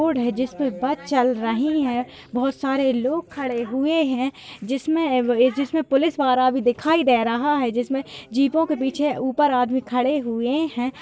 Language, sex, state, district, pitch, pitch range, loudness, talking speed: Hindi, female, Bihar, Kishanganj, 265 Hz, 250-290 Hz, -21 LUFS, 170 wpm